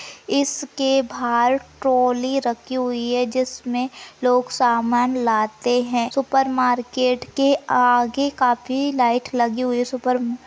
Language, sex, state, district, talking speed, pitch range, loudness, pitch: Hindi, female, Maharashtra, Nagpur, 125 wpm, 245-260 Hz, -20 LUFS, 250 Hz